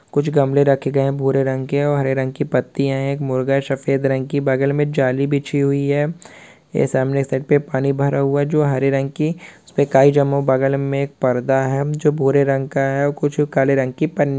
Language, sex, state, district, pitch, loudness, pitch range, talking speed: Hindi, male, Uttar Pradesh, Hamirpur, 140 Hz, -18 LUFS, 135-145 Hz, 245 wpm